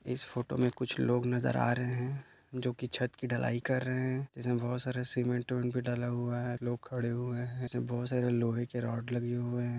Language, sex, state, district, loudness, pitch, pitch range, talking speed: Hindi, male, Maharashtra, Dhule, -34 LUFS, 125 Hz, 120-125 Hz, 235 wpm